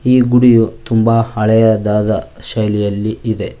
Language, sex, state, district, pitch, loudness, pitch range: Kannada, male, Karnataka, Koppal, 110 Hz, -13 LUFS, 105-115 Hz